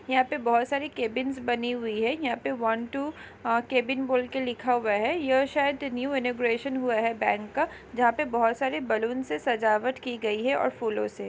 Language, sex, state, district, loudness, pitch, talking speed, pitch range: Hindi, female, Chhattisgarh, Raigarh, -27 LUFS, 245 Hz, 215 wpm, 230-270 Hz